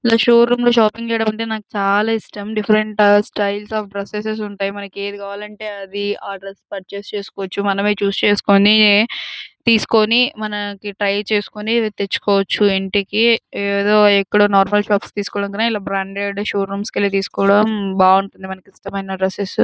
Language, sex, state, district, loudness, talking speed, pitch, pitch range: Telugu, female, Andhra Pradesh, Anantapur, -17 LUFS, 150 wpm, 205 Hz, 200-215 Hz